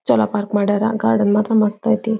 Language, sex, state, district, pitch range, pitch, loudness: Kannada, female, Karnataka, Belgaum, 205-220 Hz, 215 Hz, -17 LUFS